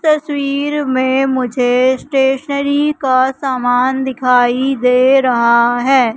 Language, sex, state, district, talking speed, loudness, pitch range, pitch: Hindi, female, Madhya Pradesh, Katni, 105 wpm, -14 LUFS, 250-275 Hz, 260 Hz